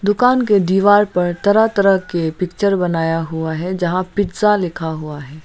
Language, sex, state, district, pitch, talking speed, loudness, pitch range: Hindi, female, Arunachal Pradesh, Lower Dibang Valley, 185 Hz, 175 wpm, -16 LUFS, 165-205 Hz